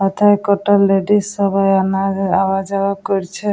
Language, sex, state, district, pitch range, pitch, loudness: Bengali, female, West Bengal, Jalpaiguri, 195-200 Hz, 195 Hz, -16 LUFS